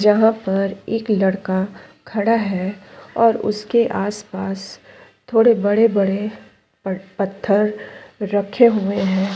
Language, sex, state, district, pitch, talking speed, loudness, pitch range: Hindi, female, Chhattisgarh, Sukma, 205 Hz, 110 wpm, -19 LUFS, 195-220 Hz